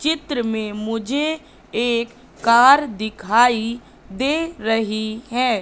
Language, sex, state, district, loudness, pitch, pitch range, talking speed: Hindi, female, Madhya Pradesh, Katni, -19 LUFS, 235 Hz, 220-270 Hz, 95 wpm